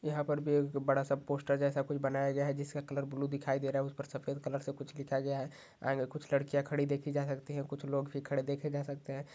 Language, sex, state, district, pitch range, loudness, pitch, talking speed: Hindi, male, Maharashtra, Nagpur, 140-145 Hz, -36 LUFS, 140 Hz, 270 wpm